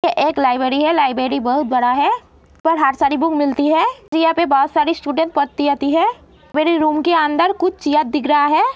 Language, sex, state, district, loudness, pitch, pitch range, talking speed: Hindi, female, Uttar Pradesh, Gorakhpur, -16 LUFS, 305 Hz, 285-330 Hz, 200 wpm